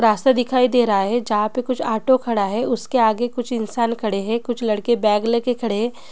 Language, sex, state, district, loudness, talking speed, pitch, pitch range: Hindi, female, Bihar, Gopalganj, -20 LUFS, 225 wpm, 235 Hz, 215-245 Hz